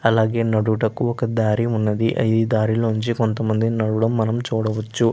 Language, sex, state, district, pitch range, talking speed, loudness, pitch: Telugu, male, Andhra Pradesh, Chittoor, 110-115 Hz, 140 wpm, -20 LUFS, 110 Hz